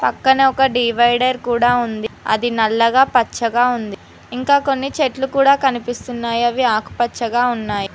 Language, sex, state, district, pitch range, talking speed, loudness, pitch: Telugu, female, Telangana, Mahabubabad, 235-265 Hz, 135 wpm, -17 LUFS, 245 Hz